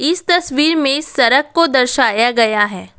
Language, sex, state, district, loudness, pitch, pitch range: Hindi, female, Assam, Kamrup Metropolitan, -14 LUFS, 275 Hz, 230-315 Hz